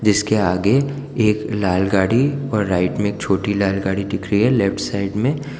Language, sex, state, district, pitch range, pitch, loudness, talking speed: Hindi, male, Gujarat, Valsad, 95-120 Hz, 105 Hz, -19 LUFS, 195 wpm